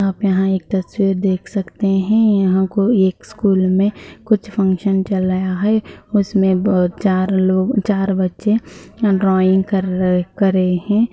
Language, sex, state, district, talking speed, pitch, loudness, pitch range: Hindi, female, Bihar, Purnia, 150 wpm, 195 Hz, -17 LUFS, 185-205 Hz